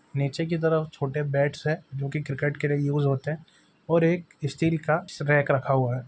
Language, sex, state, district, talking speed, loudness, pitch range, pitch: Maithili, male, Bihar, Supaul, 215 wpm, -26 LUFS, 140-165 Hz, 150 Hz